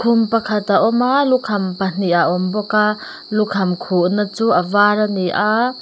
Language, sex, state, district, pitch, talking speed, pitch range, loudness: Mizo, female, Mizoram, Aizawl, 210 Hz, 165 wpm, 190-225 Hz, -17 LUFS